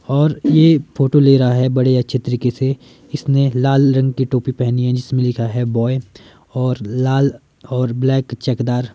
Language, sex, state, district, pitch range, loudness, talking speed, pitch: Hindi, male, Himachal Pradesh, Shimla, 125-135 Hz, -16 LUFS, 155 wpm, 130 Hz